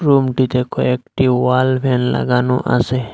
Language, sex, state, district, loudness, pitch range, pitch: Bengali, male, Assam, Hailakandi, -16 LUFS, 125-130 Hz, 125 Hz